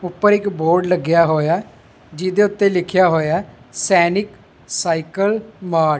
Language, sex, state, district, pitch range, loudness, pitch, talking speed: Punjabi, male, Punjab, Pathankot, 160-200 Hz, -17 LUFS, 180 Hz, 140 wpm